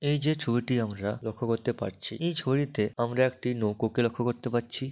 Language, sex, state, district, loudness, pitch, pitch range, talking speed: Bengali, male, West Bengal, Dakshin Dinajpur, -29 LUFS, 120 Hz, 115-130 Hz, 195 wpm